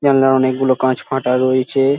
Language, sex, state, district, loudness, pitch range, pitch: Bengali, male, West Bengal, Jhargram, -15 LUFS, 130-135 Hz, 130 Hz